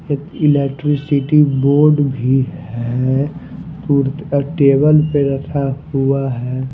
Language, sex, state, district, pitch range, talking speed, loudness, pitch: Hindi, male, Himachal Pradesh, Shimla, 135-150 Hz, 90 wpm, -16 LUFS, 140 Hz